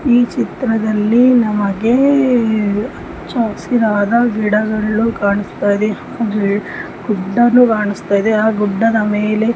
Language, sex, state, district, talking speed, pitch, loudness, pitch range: Kannada, female, Karnataka, Mysore, 95 wpm, 215 Hz, -15 LUFS, 210-235 Hz